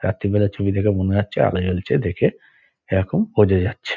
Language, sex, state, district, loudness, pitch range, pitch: Bengali, male, West Bengal, Dakshin Dinajpur, -20 LUFS, 95-105 Hz, 100 Hz